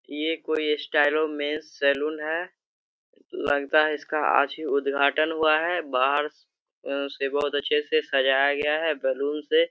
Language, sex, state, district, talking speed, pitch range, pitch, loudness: Hindi, male, Bihar, Begusarai, 150 wpm, 140-155 Hz, 150 Hz, -24 LUFS